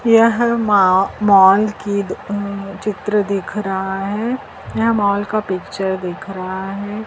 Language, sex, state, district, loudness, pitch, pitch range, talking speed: Hindi, male, Madhya Pradesh, Dhar, -17 LUFS, 200 Hz, 190-210 Hz, 135 wpm